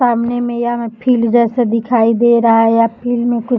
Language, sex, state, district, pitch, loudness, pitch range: Hindi, female, Uttar Pradesh, Deoria, 235 Hz, -13 LUFS, 230-240 Hz